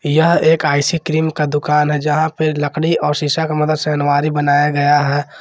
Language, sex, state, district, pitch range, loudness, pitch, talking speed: Hindi, male, Jharkhand, Ranchi, 145-155 Hz, -15 LUFS, 150 Hz, 200 wpm